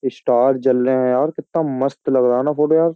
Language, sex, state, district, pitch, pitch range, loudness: Hindi, male, Uttar Pradesh, Jyotiba Phule Nagar, 135 Hz, 130-150 Hz, -17 LUFS